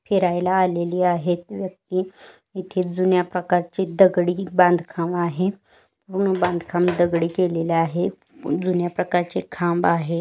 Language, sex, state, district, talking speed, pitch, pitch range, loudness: Marathi, female, Maharashtra, Pune, 110 wpm, 180 Hz, 175-185 Hz, -21 LUFS